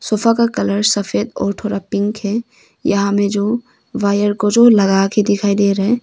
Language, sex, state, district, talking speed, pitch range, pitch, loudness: Hindi, female, Arunachal Pradesh, Longding, 190 wpm, 200-225 Hz, 205 Hz, -16 LUFS